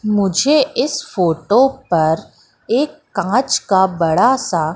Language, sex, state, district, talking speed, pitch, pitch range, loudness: Hindi, female, Madhya Pradesh, Katni, 115 wpm, 210 Hz, 175-265 Hz, -16 LUFS